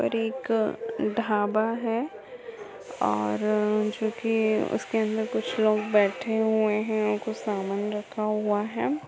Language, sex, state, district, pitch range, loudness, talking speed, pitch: Hindi, female, Chhattisgarh, Kabirdham, 210-225 Hz, -26 LUFS, 125 wpm, 220 Hz